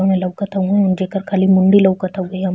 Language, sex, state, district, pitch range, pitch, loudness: Bhojpuri, female, Uttar Pradesh, Ghazipur, 185-195 Hz, 190 Hz, -16 LUFS